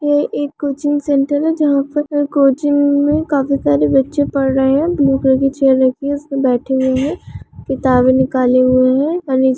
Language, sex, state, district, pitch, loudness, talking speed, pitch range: Hindi, female, Chhattisgarh, Raigarh, 275 Hz, -15 LUFS, 145 wpm, 260-290 Hz